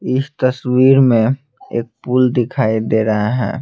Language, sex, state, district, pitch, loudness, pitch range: Hindi, male, Bihar, Patna, 125 Hz, -15 LUFS, 110-130 Hz